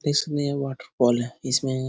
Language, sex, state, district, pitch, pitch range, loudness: Hindi, male, Bihar, Jahanabad, 135 Hz, 130-145 Hz, -25 LUFS